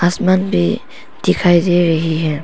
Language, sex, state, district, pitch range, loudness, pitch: Hindi, female, Arunachal Pradesh, Papum Pare, 160-180 Hz, -15 LUFS, 175 Hz